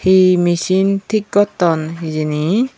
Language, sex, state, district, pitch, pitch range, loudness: Chakma, female, Tripura, Unakoti, 185 Hz, 165-200 Hz, -16 LUFS